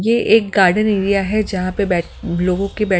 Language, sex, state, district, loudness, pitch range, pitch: Hindi, female, Delhi, New Delhi, -16 LUFS, 185-215 Hz, 200 Hz